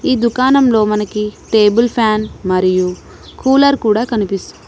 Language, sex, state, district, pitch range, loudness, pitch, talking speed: Telugu, female, Telangana, Mahabubabad, 210-245 Hz, -14 LUFS, 215 Hz, 130 wpm